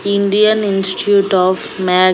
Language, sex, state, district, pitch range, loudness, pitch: Telugu, female, Andhra Pradesh, Annamaya, 185-200 Hz, -14 LUFS, 195 Hz